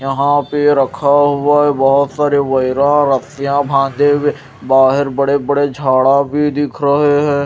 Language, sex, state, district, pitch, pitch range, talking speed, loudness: Hindi, male, Odisha, Malkangiri, 140 Hz, 135-145 Hz, 145 wpm, -13 LUFS